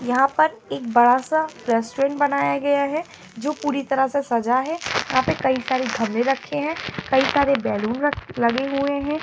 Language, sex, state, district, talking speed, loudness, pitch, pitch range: Angika, female, Bihar, Madhepura, 170 wpm, -21 LUFS, 270 Hz, 245-290 Hz